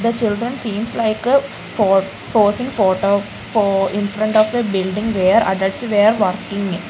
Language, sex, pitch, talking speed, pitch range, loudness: English, female, 210 Hz, 150 wpm, 195-225 Hz, -17 LUFS